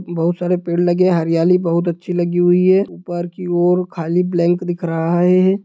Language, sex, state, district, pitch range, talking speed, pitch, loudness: Hindi, male, Bihar, Sitamarhi, 170-180 Hz, 200 wpm, 175 Hz, -16 LUFS